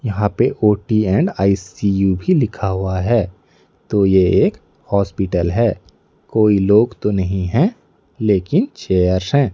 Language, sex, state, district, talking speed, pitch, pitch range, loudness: Hindi, male, Odisha, Nuapada, 100 wpm, 100 Hz, 95-110 Hz, -17 LUFS